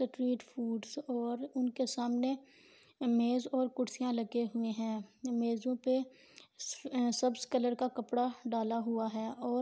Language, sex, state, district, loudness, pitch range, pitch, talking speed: Urdu, female, Andhra Pradesh, Anantapur, -35 LUFS, 235-255 Hz, 245 Hz, 130 wpm